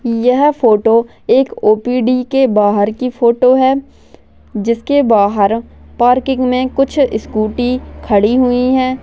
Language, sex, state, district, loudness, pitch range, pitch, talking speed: Hindi, female, Maharashtra, Aurangabad, -13 LUFS, 225-260 Hz, 250 Hz, 120 wpm